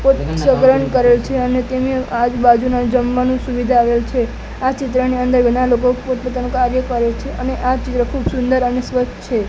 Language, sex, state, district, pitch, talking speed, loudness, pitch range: Gujarati, male, Gujarat, Gandhinagar, 250 Hz, 170 wpm, -16 LUFS, 245-255 Hz